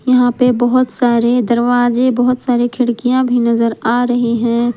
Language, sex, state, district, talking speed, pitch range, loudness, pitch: Hindi, female, Jharkhand, Palamu, 165 wpm, 235-250 Hz, -14 LUFS, 245 Hz